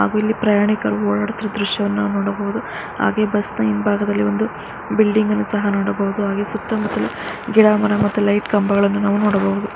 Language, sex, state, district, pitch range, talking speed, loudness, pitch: Kannada, female, Karnataka, Mysore, 200-210 Hz, 135 wpm, -18 LUFS, 205 Hz